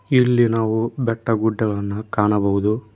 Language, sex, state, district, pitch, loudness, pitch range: Kannada, male, Karnataka, Koppal, 110 Hz, -20 LUFS, 105-115 Hz